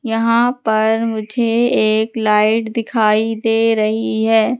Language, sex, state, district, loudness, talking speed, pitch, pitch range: Hindi, female, Madhya Pradesh, Katni, -16 LUFS, 115 wpm, 225 Hz, 220-230 Hz